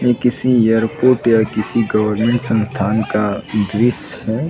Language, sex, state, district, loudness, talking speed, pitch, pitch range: Hindi, male, Bihar, Saran, -16 LUFS, 135 wpm, 110 Hz, 105-120 Hz